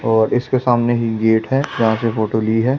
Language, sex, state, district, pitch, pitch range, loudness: Hindi, male, Delhi, New Delhi, 115 Hz, 110-125 Hz, -17 LUFS